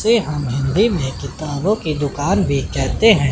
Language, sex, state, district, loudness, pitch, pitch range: Hindi, male, Chandigarh, Chandigarh, -18 LUFS, 150 Hz, 140-205 Hz